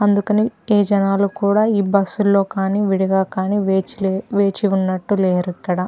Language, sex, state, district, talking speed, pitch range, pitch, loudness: Telugu, female, Andhra Pradesh, Krishna, 145 wpm, 190-205 Hz, 195 Hz, -18 LUFS